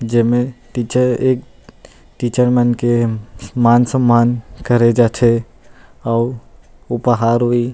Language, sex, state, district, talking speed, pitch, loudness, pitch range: Chhattisgarhi, male, Chhattisgarh, Rajnandgaon, 95 wpm, 120 Hz, -15 LUFS, 115-120 Hz